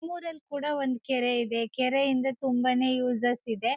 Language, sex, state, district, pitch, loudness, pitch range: Kannada, female, Karnataka, Shimoga, 255 Hz, -28 LUFS, 245-275 Hz